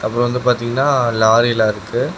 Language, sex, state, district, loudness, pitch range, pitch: Tamil, male, Tamil Nadu, Namakkal, -16 LUFS, 110-120 Hz, 120 Hz